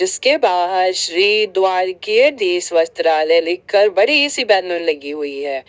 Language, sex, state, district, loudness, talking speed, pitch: Hindi, female, Jharkhand, Ranchi, -15 LUFS, 125 wpm, 185 Hz